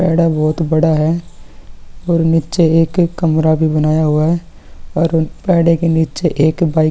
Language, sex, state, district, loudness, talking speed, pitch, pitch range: Hindi, male, Uttarakhand, Tehri Garhwal, -14 LUFS, 155 wpm, 160 Hz, 155-165 Hz